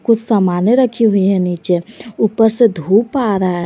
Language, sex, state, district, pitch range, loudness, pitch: Hindi, female, Jharkhand, Garhwa, 185-230 Hz, -14 LUFS, 215 Hz